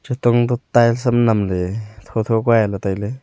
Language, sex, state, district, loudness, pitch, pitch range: Wancho, male, Arunachal Pradesh, Longding, -18 LUFS, 115 Hz, 105-120 Hz